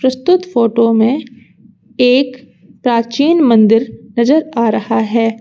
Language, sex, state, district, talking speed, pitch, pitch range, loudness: Hindi, female, Uttar Pradesh, Lucknow, 110 wpm, 235 Hz, 225-260 Hz, -13 LUFS